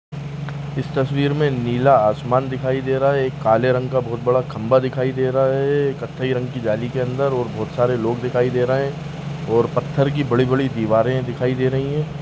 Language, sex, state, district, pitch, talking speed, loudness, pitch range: Kumaoni, male, Uttarakhand, Tehri Garhwal, 130 Hz, 215 wpm, -20 LUFS, 125-140 Hz